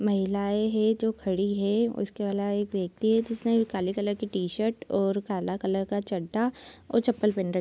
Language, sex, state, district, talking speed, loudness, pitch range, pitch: Hindi, female, Bihar, Sitamarhi, 195 wpm, -28 LUFS, 195-225 Hz, 205 Hz